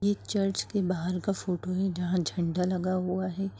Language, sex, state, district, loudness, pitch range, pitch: Bhojpuri, female, Bihar, Saran, -30 LUFS, 180-195 Hz, 185 Hz